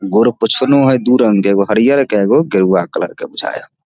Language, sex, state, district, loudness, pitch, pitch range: Maithili, male, Bihar, Samastipur, -13 LUFS, 105 Hz, 100-130 Hz